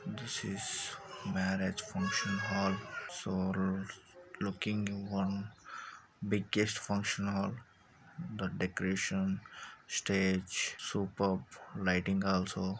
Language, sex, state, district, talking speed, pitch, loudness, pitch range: Telugu, male, Telangana, Karimnagar, 160 wpm, 95 Hz, -35 LUFS, 95-105 Hz